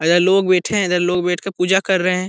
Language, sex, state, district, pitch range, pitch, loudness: Hindi, male, Bihar, Jahanabad, 180-190 Hz, 185 Hz, -17 LUFS